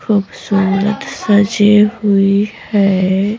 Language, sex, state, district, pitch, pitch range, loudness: Hindi, female, Bihar, Patna, 205 Hz, 195-210 Hz, -13 LUFS